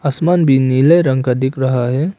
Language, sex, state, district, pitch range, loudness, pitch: Hindi, male, Arunachal Pradesh, Papum Pare, 130-160 Hz, -14 LUFS, 135 Hz